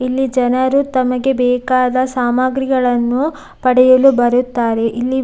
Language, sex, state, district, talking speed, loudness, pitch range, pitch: Kannada, female, Karnataka, Dakshina Kannada, 105 wpm, -14 LUFS, 245-265 Hz, 255 Hz